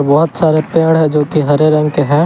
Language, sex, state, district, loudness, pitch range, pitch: Hindi, male, Jharkhand, Garhwa, -12 LUFS, 145-160 Hz, 150 Hz